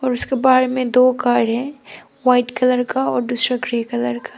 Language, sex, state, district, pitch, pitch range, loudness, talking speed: Hindi, female, Arunachal Pradesh, Papum Pare, 250 Hz, 240-255 Hz, -17 LUFS, 205 wpm